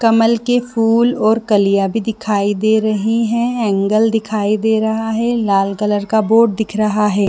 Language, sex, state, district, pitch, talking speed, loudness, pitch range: Hindi, female, Chhattisgarh, Bilaspur, 220 Hz, 180 wpm, -15 LUFS, 210-225 Hz